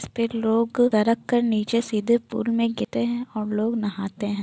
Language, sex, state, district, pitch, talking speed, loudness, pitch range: Hindi, female, Bihar, Jamui, 230 Hz, 205 wpm, -23 LUFS, 215-235 Hz